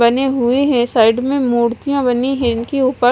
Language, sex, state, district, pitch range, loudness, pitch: Hindi, female, Haryana, Charkhi Dadri, 235-270 Hz, -15 LUFS, 250 Hz